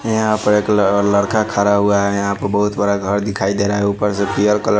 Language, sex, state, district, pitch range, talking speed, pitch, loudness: Hindi, male, Haryana, Charkhi Dadri, 100-105 Hz, 275 wpm, 100 Hz, -16 LUFS